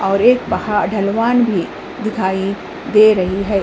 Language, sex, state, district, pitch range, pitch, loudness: Hindi, female, Uttar Pradesh, Hamirpur, 195-225 Hz, 205 Hz, -16 LUFS